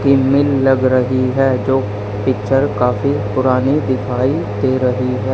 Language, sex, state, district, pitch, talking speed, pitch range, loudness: Hindi, male, Haryana, Charkhi Dadri, 130 Hz, 135 wpm, 125-135 Hz, -15 LUFS